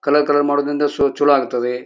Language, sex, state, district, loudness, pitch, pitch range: Kannada, male, Karnataka, Bijapur, -17 LUFS, 145 Hz, 135-145 Hz